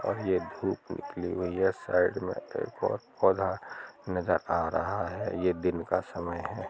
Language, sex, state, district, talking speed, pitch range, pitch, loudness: Hindi, male, Jharkhand, Jamtara, 190 wpm, 85-90 Hz, 90 Hz, -31 LUFS